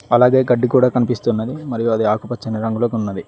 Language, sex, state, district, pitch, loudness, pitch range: Telugu, male, Telangana, Mahabubabad, 120 Hz, -17 LUFS, 110-125 Hz